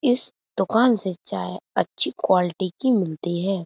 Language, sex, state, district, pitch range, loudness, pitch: Hindi, female, Uttar Pradesh, Budaun, 180-230 Hz, -22 LUFS, 190 Hz